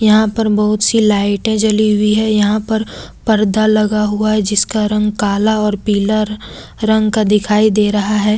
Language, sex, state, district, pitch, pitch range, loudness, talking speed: Hindi, female, Jharkhand, Deoghar, 210 Hz, 210-215 Hz, -14 LUFS, 180 wpm